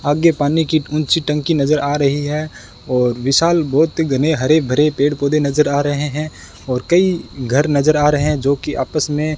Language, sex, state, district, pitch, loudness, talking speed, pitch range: Hindi, male, Rajasthan, Bikaner, 150 Hz, -16 LUFS, 210 wpm, 140-155 Hz